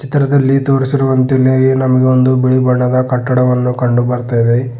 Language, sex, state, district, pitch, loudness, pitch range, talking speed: Kannada, male, Karnataka, Bidar, 130 Hz, -12 LUFS, 125-130 Hz, 140 wpm